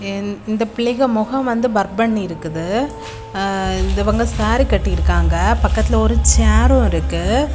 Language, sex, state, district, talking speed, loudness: Tamil, female, Tamil Nadu, Kanyakumari, 105 wpm, -17 LUFS